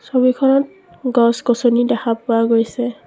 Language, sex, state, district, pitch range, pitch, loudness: Assamese, female, Assam, Kamrup Metropolitan, 230-255 Hz, 240 Hz, -16 LUFS